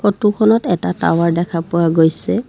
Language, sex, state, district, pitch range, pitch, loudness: Assamese, female, Assam, Kamrup Metropolitan, 165-210 Hz, 170 Hz, -15 LUFS